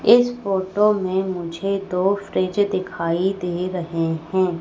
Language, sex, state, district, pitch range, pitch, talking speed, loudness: Hindi, female, Madhya Pradesh, Katni, 180-195 Hz, 185 Hz, 130 wpm, -21 LUFS